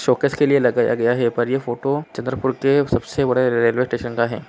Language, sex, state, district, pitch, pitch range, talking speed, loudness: Hindi, male, Maharashtra, Chandrapur, 125 Hz, 120-135 Hz, 215 wpm, -19 LUFS